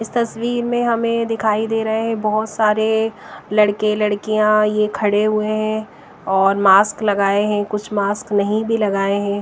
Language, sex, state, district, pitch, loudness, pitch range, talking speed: Hindi, female, Bihar, West Champaran, 215 Hz, -18 LUFS, 205-220 Hz, 165 wpm